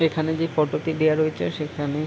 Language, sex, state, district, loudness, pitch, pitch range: Bengali, male, West Bengal, Paschim Medinipur, -23 LUFS, 155 Hz, 155-160 Hz